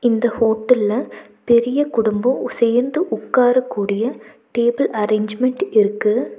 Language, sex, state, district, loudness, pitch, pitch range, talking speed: Tamil, female, Tamil Nadu, Nilgiris, -18 LUFS, 240 Hz, 225-255 Hz, 85 wpm